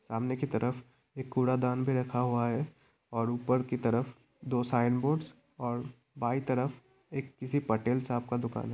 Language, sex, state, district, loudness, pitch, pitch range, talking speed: Hindi, male, Bihar, Kishanganj, -32 LUFS, 125 Hz, 120-130 Hz, 190 wpm